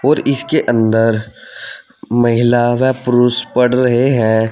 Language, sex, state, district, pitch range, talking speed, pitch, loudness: Hindi, male, Uttar Pradesh, Saharanpur, 115-130 Hz, 120 wpm, 120 Hz, -14 LUFS